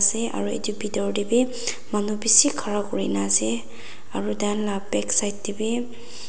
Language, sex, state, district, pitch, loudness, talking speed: Nagamese, female, Nagaland, Dimapur, 205 Hz, -22 LUFS, 170 wpm